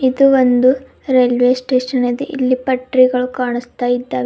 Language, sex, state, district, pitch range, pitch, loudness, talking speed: Kannada, female, Karnataka, Bidar, 245-260 Hz, 255 Hz, -15 LUFS, 115 wpm